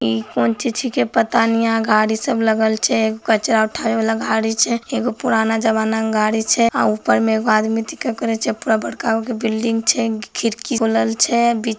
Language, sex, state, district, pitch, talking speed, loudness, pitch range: Maithili, female, Bihar, Begusarai, 225 Hz, 195 wpm, -18 LUFS, 220-230 Hz